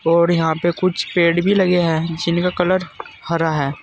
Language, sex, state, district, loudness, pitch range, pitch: Hindi, male, Uttar Pradesh, Saharanpur, -18 LUFS, 165-180 Hz, 170 Hz